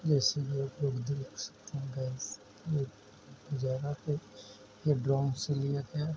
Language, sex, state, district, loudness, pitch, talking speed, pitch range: Hindi, male, Uttar Pradesh, Hamirpur, -34 LUFS, 135 Hz, 80 wpm, 105-145 Hz